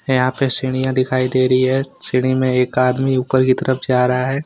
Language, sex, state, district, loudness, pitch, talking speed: Hindi, male, Jharkhand, Deoghar, -16 LUFS, 130 Hz, 230 wpm